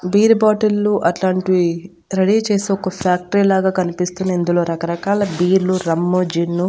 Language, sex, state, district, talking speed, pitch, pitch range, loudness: Telugu, female, Andhra Pradesh, Annamaya, 135 wpm, 185 Hz, 175-195 Hz, -17 LUFS